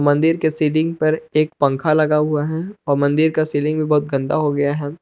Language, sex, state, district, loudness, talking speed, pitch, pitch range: Hindi, male, Jharkhand, Palamu, -18 LUFS, 225 wpm, 155 Hz, 145-155 Hz